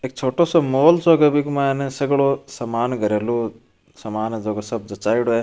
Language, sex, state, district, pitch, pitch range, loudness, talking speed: Marwari, male, Rajasthan, Churu, 125 Hz, 110-140 Hz, -20 LUFS, 175 wpm